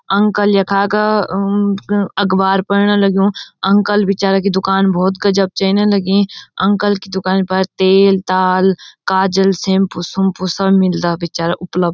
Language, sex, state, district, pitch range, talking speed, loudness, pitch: Garhwali, female, Uttarakhand, Uttarkashi, 190-200 Hz, 145 wpm, -14 LUFS, 195 Hz